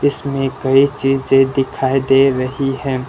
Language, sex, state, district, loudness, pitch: Hindi, male, Arunachal Pradesh, Lower Dibang Valley, -15 LUFS, 135 Hz